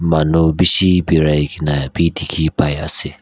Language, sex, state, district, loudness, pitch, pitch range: Nagamese, male, Nagaland, Kohima, -15 LUFS, 80 Hz, 75-85 Hz